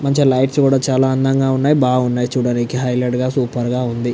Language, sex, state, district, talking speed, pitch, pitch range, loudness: Telugu, male, Andhra Pradesh, Visakhapatnam, 200 wpm, 130 Hz, 125-135 Hz, -16 LUFS